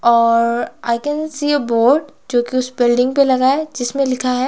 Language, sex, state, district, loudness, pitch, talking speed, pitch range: Hindi, female, Himachal Pradesh, Shimla, -16 LUFS, 255 Hz, 225 wpm, 240-280 Hz